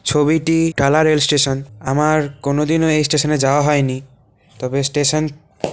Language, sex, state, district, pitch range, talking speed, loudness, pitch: Bengali, male, West Bengal, Kolkata, 135-155 Hz, 125 wpm, -16 LUFS, 145 Hz